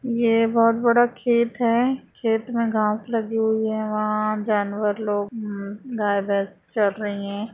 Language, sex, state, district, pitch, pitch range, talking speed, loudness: Hindi, female, Jharkhand, Sahebganj, 220 Hz, 205-230 Hz, 160 wpm, -22 LUFS